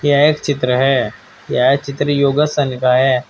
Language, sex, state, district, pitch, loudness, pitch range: Hindi, male, Uttar Pradesh, Saharanpur, 140 Hz, -15 LUFS, 130-145 Hz